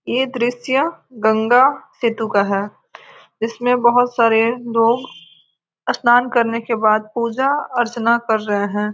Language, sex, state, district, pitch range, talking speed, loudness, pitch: Hindi, female, Bihar, Gopalganj, 215-245 Hz, 130 wpm, -17 LUFS, 235 Hz